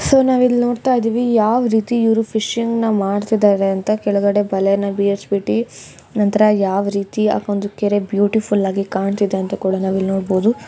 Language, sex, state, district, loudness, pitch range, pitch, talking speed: Kannada, female, Karnataka, Dakshina Kannada, -17 LUFS, 200-225 Hz, 205 Hz, 165 wpm